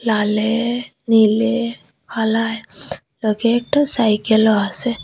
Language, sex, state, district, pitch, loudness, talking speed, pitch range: Bengali, female, Assam, Hailakandi, 225 Hz, -17 LUFS, 85 wpm, 215-240 Hz